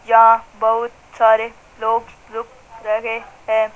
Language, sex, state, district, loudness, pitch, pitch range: Hindi, female, Rajasthan, Jaipur, -17 LUFS, 225 Hz, 220-230 Hz